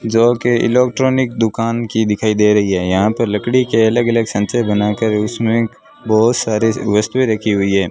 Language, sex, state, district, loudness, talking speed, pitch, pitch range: Hindi, male, Rajasthan, Bikaner, -15 LUFS, 180 wpm, 110 Hz, 105-120 Hz